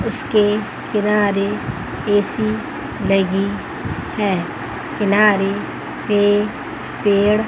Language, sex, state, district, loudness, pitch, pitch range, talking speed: Hindi, female, Chandigarh, Chandigarh, -19 LUFS, 205 Hz, 200-210 Hz, 65 wpm